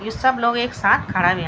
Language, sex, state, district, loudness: Garhwali, female, Uttarakhand, Tehri Garhwal, -19 LUFS